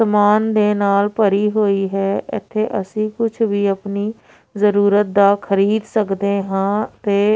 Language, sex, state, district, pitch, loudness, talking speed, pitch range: Punjabi, female, Punjab, Pathankot, 205 Hz, -17 LUFS, 140 wpm, 200-215 Hz